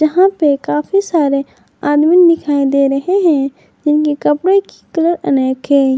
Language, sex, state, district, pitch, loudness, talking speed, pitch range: Hindi, female, Jharkhand, Garhwa, 295 Hz, -13 LUFS, 150 wpm, 275-340 Hz